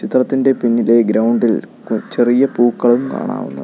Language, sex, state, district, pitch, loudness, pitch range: Malayalam, male, Kerala, Kollam, 120 Hz, -15 LUFS, 115-130 Hz